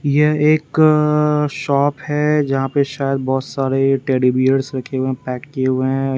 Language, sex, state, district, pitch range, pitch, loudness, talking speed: Hindi, male, Bihar, Patna, 130-150 Hz, 135 Hz, -17 LUFS, 175 wpm